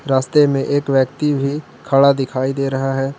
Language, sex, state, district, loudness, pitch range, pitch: Hindi, male, Jharkhand, Garhwa, -17 LUFS, 135-145 Hz, 135 Hz